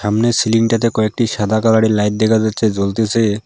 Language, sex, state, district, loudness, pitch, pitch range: Bengali, male, West Bengal, Alipurduar, -15 LUFS, 110 Hz, 105-115 Hz